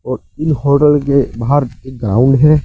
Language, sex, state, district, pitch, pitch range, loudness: Hindi, male, Uttar Pradesh, Saharanpur, 140 Hz, 130-145 Hz, -13 LUFS